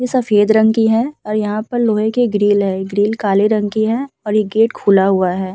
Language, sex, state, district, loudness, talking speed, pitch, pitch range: Hindi, female, Uttar Pradesh, Budaun, -15 LUFS, 250 wpm, 215 Hz, 205-225 Hz